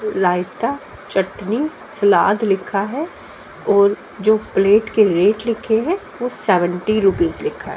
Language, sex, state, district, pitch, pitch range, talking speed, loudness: Hindi, female, Haryana, Jhajjar, 205 Hz, 195-225 Hz, 130 wpm, -18 LUFS